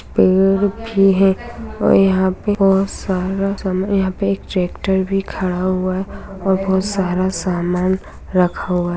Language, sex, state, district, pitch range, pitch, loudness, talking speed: Hindi, female, Bihar, Darbhanga, 185-195 Hz, 190 Hz, -17 LUFS, 160 wpm